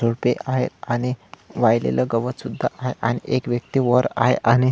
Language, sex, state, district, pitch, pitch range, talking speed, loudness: Marathi, male, Maharashtra, Solapur, 125 Hz, 115-125 Hz, 165 wpm, -21 LUFS